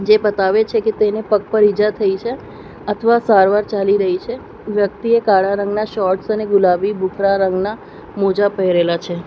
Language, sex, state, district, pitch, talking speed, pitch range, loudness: Gujarati, female, Gujarat, Valsad, 205 Hz, 170 wpm, 195-215 Hz, -16 LUFS